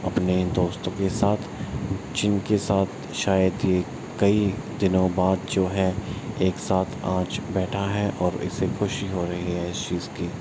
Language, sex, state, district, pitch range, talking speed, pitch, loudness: Hindi, male, Bihar, Araria, 90-100 Hz, 155 wpm, 95 Hz, -25 LUFS